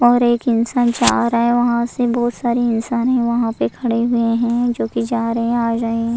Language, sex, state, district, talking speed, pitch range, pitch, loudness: Hindi, female, Goa, North and South Goa, 245 wpm, 230-240 Hz, 235 Hz, -17 LUFS